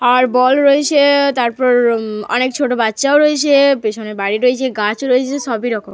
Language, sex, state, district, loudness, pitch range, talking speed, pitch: Bengali, female, Jharkhand, Jamtara, -14 LUFS, 225-280 Hz, 150 wpm, 250 Hz